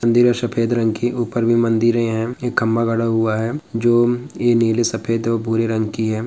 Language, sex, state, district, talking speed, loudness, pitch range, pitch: Hindi, male, Bihar, Jamui, 220 wpm, -18 LUFS, 115-120 Hz, 115 Hz